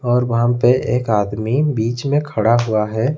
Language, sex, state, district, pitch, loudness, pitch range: Hindi, male, Odisha, Khordha, 120 Hz, -17 LUFS, 110-125 Hz